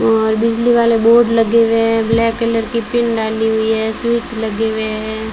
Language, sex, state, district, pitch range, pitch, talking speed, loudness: Hindi, female, Rajasthan, Bikaner, 220-230 Hz, 225 Hz, 205 wpm, -15 LUFS